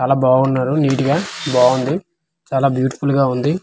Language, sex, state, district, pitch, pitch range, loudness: Telugu, male, Andhra Pradesh, Manyam, 135 Hz, 130-155 Hz, -17 LUFS